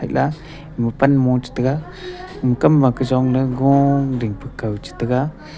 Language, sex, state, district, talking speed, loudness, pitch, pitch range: Wancho, male, Arunachal Pradesh, Longding, 110 wpm, -18 LUFS, 130 Hz, 125-150 Hz